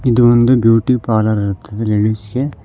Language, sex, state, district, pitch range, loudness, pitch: Kannada, male, Karnataka, Koppal, 110-120 Hz, -14 LUFS, 115 Hz